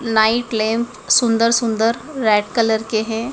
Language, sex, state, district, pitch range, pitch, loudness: Hindi, female, Madhya Pradesh, Dhar, 220-235 Hz, 225 Hz, -17 LUFS